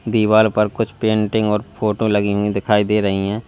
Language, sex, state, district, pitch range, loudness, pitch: Hindi, male, Uttar Pradesh, Lalitpur, 105-110 Hz, -17 LUFS, 105 Hz